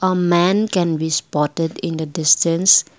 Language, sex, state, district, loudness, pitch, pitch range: English, female, Assam, Kamrup Metropolitan, -17 LUFS, 165 Hz, 160-180 Hz